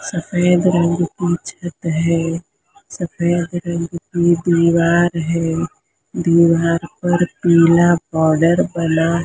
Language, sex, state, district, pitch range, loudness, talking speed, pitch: Hindi, female, Maharashtra, Mumbai Suburban, 165-175 Hz, -16 LUFS, 95 wpm, 170 Hz